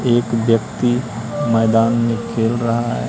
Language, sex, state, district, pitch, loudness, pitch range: Hindi, male, Madhya Pradesh, Katni, 115 Hz, -17 LUFS, 115-120 Hz